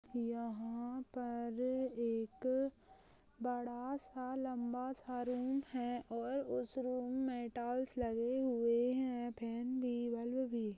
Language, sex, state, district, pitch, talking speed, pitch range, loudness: Hindi, female, Uttar Pradesh, Budaun, 245 Hz, 125 wpm, 235-255 Hz, -40 LUFS